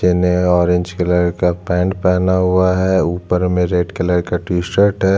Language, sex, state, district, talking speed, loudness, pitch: Hindi, male, Chhattisgarh, Jashpur, 185 wpm, -16 LUFS, 90 Hz